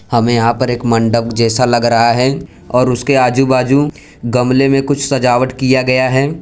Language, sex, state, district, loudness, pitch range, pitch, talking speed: Hindi, male, Gujarat, Valsad, -13 LUFS, 120-135 Hz, 125 Hz, 185 wpm